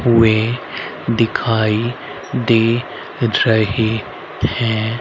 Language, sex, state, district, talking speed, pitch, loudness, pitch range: Hindi, male, Haryana, Rohtak, 60 wpm, 115 Hz, -17 LUFS, 110-120 Hz